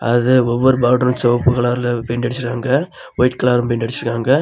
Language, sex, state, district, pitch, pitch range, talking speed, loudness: Tamil, male, Tamil Nadu, Kanyakumari, 120 Hz, 120-125 Hz, 150 wpm, -16 LUFS